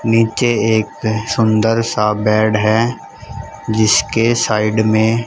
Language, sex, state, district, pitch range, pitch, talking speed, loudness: Hindi, male, Haryana, Charkhi Dadri, 105-115 Hz, 110 Hz, 105 wpm, -15 LUFS